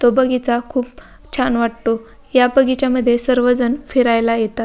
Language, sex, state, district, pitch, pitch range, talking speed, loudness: Marathi, female, Maharashtra, Pune, 245 Hz, 235-255 Hz, 130 wpm, -17 LUFS